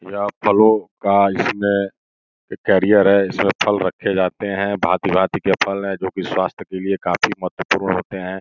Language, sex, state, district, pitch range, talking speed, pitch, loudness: Hindi, male, Uttar Pradesh, Gorakhpur, 95-100 Hz, 170 wpm, 100 Hz, -18 LUFS